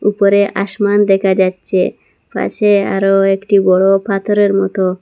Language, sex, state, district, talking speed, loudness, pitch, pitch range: Bengali, female, Assam, Hailakandi, 120 wpm, -13 LUFS, 195 Hz, 195-200 Hz